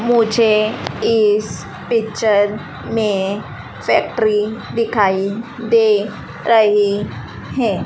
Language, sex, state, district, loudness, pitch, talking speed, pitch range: Hindi, female, Madhya Pradesh, Dhar, -17 LUFS, 215 Hz, 70 wpm, 205-225 Hz